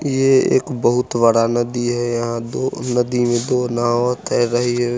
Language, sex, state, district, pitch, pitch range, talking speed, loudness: Hindi, male, Bihar, Muzaffarpur, 120 Hz, 120-125 Hz, 180 wpm, -18 LUFS